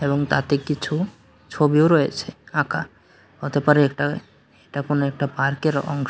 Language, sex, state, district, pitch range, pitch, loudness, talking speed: Bengali, male, Tripura, West Tripura, 140-150 Hz, 145 Hz, -21 LUFS, 140 wpm